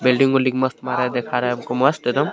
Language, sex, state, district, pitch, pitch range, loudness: Hindi, male, Jharkhand, Garhwa, 125 Hz, 125-130 Hz, -20 LUFS